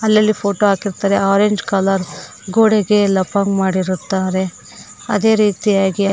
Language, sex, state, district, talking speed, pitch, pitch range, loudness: Kannada, female, Karnataka, Koppal, 100 wpm, 200 Hz, 190-210 Hz, -16 LUFS